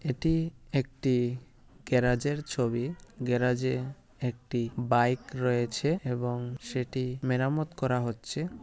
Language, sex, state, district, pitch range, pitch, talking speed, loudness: Bengali, female, West Bengal, Malda, 125-135 Hz, 125 Hz, 105 wpm, -30 LUFS